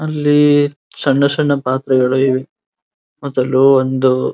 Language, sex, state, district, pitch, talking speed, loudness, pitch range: Kannada, male, Karnataka, Dharwad, 135 Hz, 95 wpm, -14 LUFS, 130-145 Hz